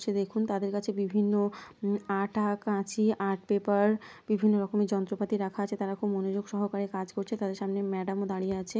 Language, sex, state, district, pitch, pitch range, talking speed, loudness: Bengali, female, West Bengal, North 24 Parganas, 200 Hz, 195-210 Hz, 185 wpm, -30 LUFS